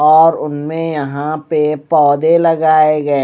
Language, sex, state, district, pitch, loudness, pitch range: Hindi, male, Odisha, Malkangiri, 155 Hz, -13 LUFS, 150-160 Hz